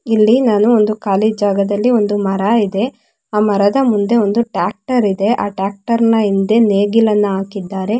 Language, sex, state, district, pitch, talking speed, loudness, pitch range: Kannada, female, Karnataka, Mysore, 210 Hz, 150 wpm, -14 LUFS, 200-230 Hz